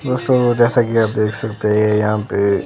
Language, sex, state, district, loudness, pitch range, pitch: Hindi, female, Himachal Pradesh, Shimla, -16 LUFS, 105-120 Hz, 110 Hz